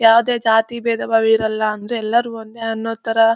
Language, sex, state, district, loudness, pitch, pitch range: Kannada, female, Karnataka, Bellary, -18 LUFS, 225 Hz, 225-230 Hz